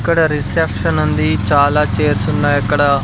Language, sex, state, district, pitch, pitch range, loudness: Telugu, male, Andhra Pradesh, Sri Satya Sai, 140 Hz, 95-145 Hz, -14 LUFS